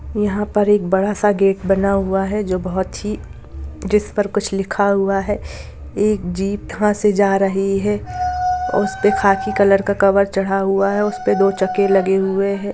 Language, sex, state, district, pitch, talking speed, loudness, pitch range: Hindi, female, Jharkhand, Sahebganj, 195 Hz, 180 wpm, -17 LUFS, 195-205 Hz